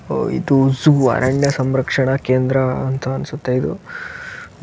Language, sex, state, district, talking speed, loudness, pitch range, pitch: Kannada, male, Karnataka, Raichur, 105 wpm, -17 LUFS, 130-145 Hz, 135 Hz